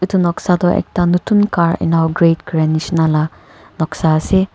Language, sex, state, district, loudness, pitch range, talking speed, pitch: Nagamese, female, Nagaland, Kohima, -15 LUFS, 160-180 Hz, 160 wpm, 170 Hz